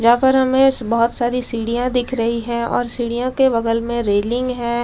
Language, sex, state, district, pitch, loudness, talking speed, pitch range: Hindi, female, Delhi, New Delhi, 240 Hz, -18 LUFS, 200 wpm, 235-250 Hz